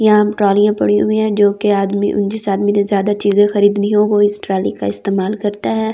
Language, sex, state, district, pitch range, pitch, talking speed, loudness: Hindi, female, Delhi, New Delhi, 200-210 Hz, 205 Hz, 220 wpm, -15 LUFS